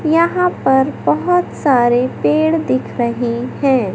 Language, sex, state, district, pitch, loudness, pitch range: Hindi, male, Madhya Pradesh, Katni, 265 Hz, -15 LUFS, 245-325 Hz